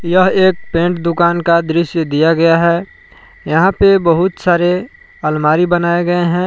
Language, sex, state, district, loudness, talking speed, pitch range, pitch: Hindi, male, Jharkhand, Palamu, -13 LUFS, 160 wpm, 170-185 Hz, 175 Hz